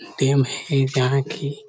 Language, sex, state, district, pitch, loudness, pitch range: Hindi, male, Chhattisgarh, Korba, 140 Hz, -21 LUFS, 135-140 Hz